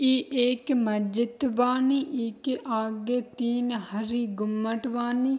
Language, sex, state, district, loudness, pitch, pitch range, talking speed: Bhojpuri, female, Bihar, East Champaran, -27 LUFS, 240 Hz, 225-255 Hz, 110 wpm